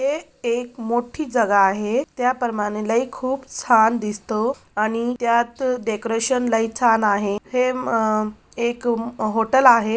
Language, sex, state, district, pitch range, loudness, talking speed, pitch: Marathi, female, Maharashtra, Aurangabad, 220-250 Hz, -21 LUFS, 130 wpm, 235 Hz